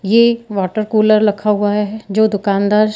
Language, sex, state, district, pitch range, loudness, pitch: Hindi, female, Madhya Pradesh, Katni, 205-215 Hz, -15 LUFS, 210 Hz